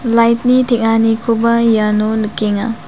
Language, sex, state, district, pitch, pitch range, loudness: Garo, female, Meghalaya, South Garo Hills, 225 Hz, 220-235 Hz, -13 LUFS